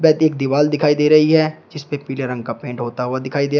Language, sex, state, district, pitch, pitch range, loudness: Hindi, male, Uttar Pradesh, Shamli, 145 Hz, 130-155 Hz, -18 LUFS